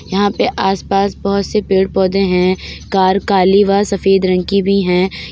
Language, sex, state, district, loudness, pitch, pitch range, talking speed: Hindi, female, Uttar Pradesh, Jyotiba Phule Nagar, -14 LUFS, 195 Hz, 190-200 Hz, 180 wpm